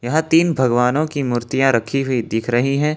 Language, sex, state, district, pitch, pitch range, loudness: Hindi, male, Jharkhand, Ranchi, 135 Hz, 120-150 Hz, -18 LUFS